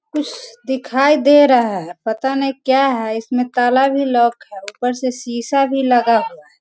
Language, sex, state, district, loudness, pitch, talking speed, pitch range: Hindi, female, Bihar, Sitamarhi, -16 LUFS, 255 Hz, 190 wpm, 235-275 Hz